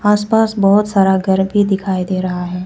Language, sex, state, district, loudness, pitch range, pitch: Hindi, female, Arunachal Pradesh, Papum Pare, -15 LUFS, 185-210 Hz, 195 Hz